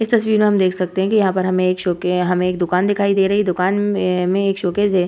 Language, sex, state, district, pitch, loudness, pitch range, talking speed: Hindi, female, Bihar, Vaishali, 185 Hz, -17 LUFS, 180-200 Hz, 305 wpm